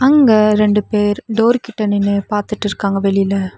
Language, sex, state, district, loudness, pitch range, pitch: Tamil, female, Tamil Nadu, Nilgiris, -15 LUFS, 200-220 Hz, 210 Hz